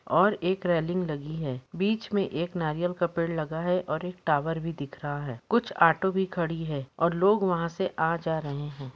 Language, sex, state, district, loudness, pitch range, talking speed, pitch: Hindi, female, Jharkhand, Jamtara, -28 LUFS, 150-180 Hz, 220 wpm, 165 Hz